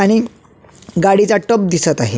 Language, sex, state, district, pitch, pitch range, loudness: Marathi, male, Maharashtra, Solapur, 195 Hz, 170-220 Hz, -14 LUFS